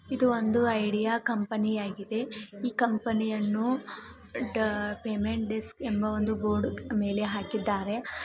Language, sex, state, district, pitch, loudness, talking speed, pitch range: Kannada, female, Karnataka, Belgaum, 220 Hz, -29 LUFS, 110 wpm, 210-230 Hz